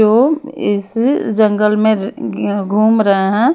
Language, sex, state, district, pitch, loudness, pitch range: Hindi, female, Maharashtra, Mumbai Suburban, 215 Hz, -14 LUFS, 205-230 Hz